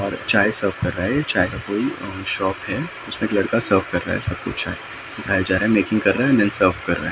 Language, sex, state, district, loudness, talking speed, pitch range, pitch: Hindi, male, Maharashtra, Mumbai Suburban, -21 LUFS, 305 wpm, 95-110 Hz, 100 Hz